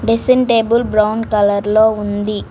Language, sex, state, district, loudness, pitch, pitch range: Telugu, female, Telangana, Mahabubabad, -14 LUFS, 215 Hz, 210-230 Hz